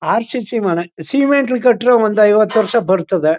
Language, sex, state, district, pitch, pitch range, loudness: Kannada, male, Karnataka, Chamarajanagar, 220 Hz, 195-250 Hz, -14 LUFS